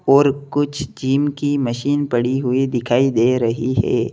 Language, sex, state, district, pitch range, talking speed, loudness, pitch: Hindi, male, Uttar Pradesh, Lalitpur, 120-145 Hz, 160 wpm, -18 LUFS, 135 Hz